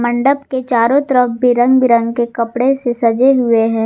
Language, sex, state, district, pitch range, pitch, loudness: Hindi, female, Jharkhand, Garhwa, 235-260 Hz, 245 Hz, -13 LUFS